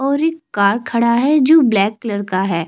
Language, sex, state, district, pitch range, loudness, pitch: Hindi, female, Chhattisgarh, Jashpur, 200-285 Hz, -15 LUFS, 235 Hz